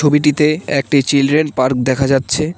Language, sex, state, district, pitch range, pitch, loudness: Bengali, male, West Bengal, Cooch Behar, 135-150 Hz, 140 Hz, -14 LUFS